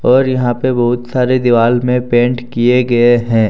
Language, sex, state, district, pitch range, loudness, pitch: Hindi, male, Jharkhand, Deoghar, 120-125 Hz, -13 LUFS, 120 Hz